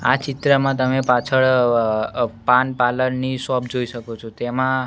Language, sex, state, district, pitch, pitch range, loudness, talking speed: Gujarati, male, Gujarat, Gandhinagar, 125 Hz, 120-130 Hz, -19 LUFS, 170 wpm